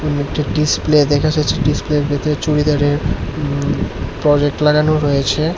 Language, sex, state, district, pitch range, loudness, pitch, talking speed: Bengali, male, Tripura, West Tripura, 145-150 Hz, -16 LUFS, 150 Hz, 130 wpm